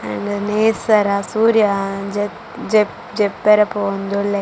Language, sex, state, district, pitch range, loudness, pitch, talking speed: Tulu, female, Karnataka, Dakshina Kannada, 200-215 Hz, -17 LUFS, 205 Hz, 80 wpm